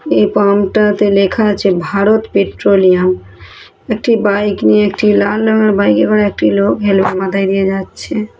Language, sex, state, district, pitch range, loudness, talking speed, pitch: Bengali, female, West Bengal, North 24 Parganas, 190-210 Hz, -12 LUFS, 155 wpm, 200 Hz